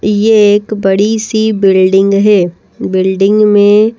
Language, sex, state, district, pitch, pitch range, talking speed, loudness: Hindi, female, Madhya Pradesh, Bhopal, 205 Hz, 195-215 Hz, 120 wpm, -9 LUFS